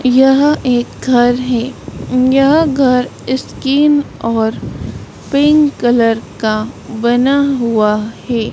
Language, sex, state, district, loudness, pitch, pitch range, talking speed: Hindi, female, Madhya Pradesh, Dhar, -13 LUFS, 250 Hz, 235-275 Hz, 100 wpm